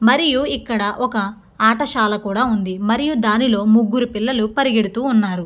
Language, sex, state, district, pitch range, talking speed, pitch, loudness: Telugu, female, Andhra Pradesh, Guntur, 210-255 Hz, 130 wpm, 220 Hz, -17 LUFS